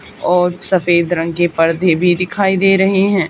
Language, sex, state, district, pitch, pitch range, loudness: Hindi, female, Haryana, Charkhi Dadri, 180 Hz, 170-190 Hz, -14 LUFS